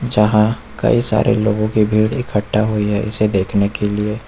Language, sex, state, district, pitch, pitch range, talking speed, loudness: Hindi, male, Uttar Pradesh, Lucknow, 105 Hz, 105-110 Hz, 185 wpm, -16 LUFS